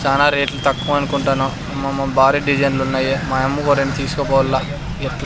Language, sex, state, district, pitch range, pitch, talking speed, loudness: Telugu, male, Andhra Pradesh, Sri Satya Sai, 135-145 Hz, 140 Hz, 170 wpm, -18 LUFS